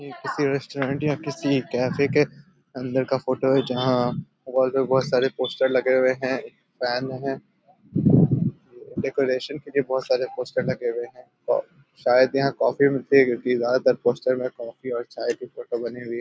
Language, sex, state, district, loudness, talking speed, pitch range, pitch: Hindi, male, Bihar, Darbhanga, -23 LUFS, 180 wpm, 130-140 Hz, 130 Hz